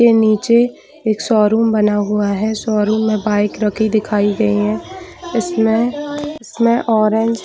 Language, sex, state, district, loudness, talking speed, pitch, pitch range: Hindi, female, Chhattisgarh, Bilaspur, -16 LUFS, 160 wpm, 220 Hz, 210-235 Hz